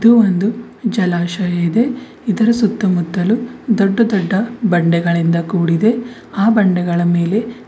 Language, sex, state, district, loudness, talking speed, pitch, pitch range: Kannada, female, Karnataka, Bidar, -16 LUFS, 110 wpm, 200 Hz, 175-225 Hz